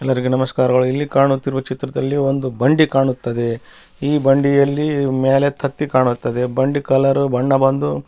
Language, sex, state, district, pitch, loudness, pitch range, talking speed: Kannada, male, Karnataka, Bellary, 135 Hz, -17 LUFS, 130-140 Hz, 125 wpm